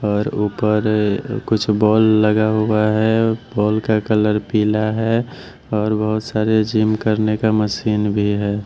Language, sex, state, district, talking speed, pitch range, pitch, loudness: Hindi, male, Bihar, West Champaran, 145 wpm, 105-110 Hz, 110 Hz, -17 LUFS